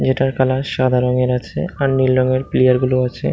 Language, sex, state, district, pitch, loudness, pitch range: Bengali, male, West Bengal, Malda, 130 Hz, -17 LUFS, 125-130 Hz